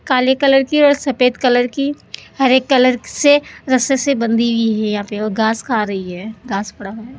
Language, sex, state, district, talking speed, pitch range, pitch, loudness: Hindi, female, Rajasthan, Jaipur, 210 wpm, 220-270 Hz, 250 Hz, -15 LUFS